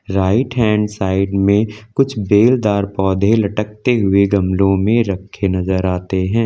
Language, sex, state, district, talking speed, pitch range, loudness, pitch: Hindi, male, Uttar Pradesh, Lucknow, 140 wpm, 95-110 Hz, -16 LUFS, 100 Hz